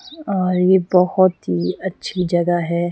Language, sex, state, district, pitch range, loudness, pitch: Hindi, female, Himachal Pradesh, Shimla, 175-190 Hz, -18 LUFS, 180 Hz